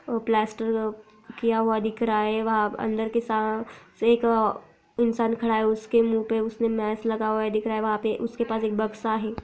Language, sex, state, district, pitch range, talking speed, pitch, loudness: Hindi, female, Chhattisgarh, Raigarh, 215-230 Hz, 205 wpm, 220 Hz, -25 LUFS